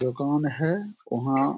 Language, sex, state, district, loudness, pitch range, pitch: Hindi, male, Bihar, Begusarai, -27 LUFS, 135-160 Hz, 145 Hz